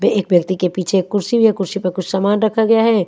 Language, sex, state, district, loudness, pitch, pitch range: Hindi, female, Haryana, Charkhi Dadri, -16 LUFS, 200 Hz, 185-220 Hz